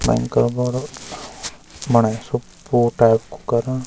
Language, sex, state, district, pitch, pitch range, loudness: Garhwali, male, Uttarakhand, Uttarkashi, 120 Hz, 115-125 Hz, -19 LUFS